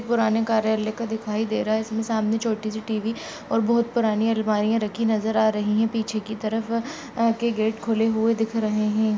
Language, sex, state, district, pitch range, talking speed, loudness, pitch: Angika, female, Bihar, Madhepura, 215-225 Hz, 205 wpm, -24 LUFS, 220 Hz